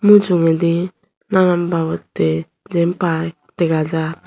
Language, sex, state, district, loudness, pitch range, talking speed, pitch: Chakma, female, Tripura, Unakoti, -18 LUFS, 160-180 Hz, 100 wpm, 170 Hz